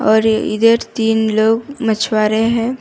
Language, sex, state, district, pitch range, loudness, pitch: Hindi, female, Karnataka, Koppal, 220-230 Hz, -15 LUFS, 225 Hz